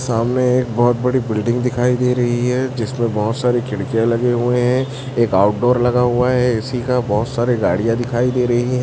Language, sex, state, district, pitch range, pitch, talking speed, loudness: Hindi, male, Chhattisgarh, Raipur, 115-125 Hz, 125 Hz, 205 wpm, -17 LUFS